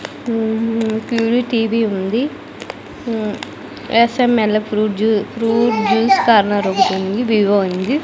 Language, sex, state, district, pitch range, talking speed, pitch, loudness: Telugu, female, Andhra Pradesh, Sri Satya Sai, 205-235 Hz, 110 wpm, 225 Hz, -16 LUFS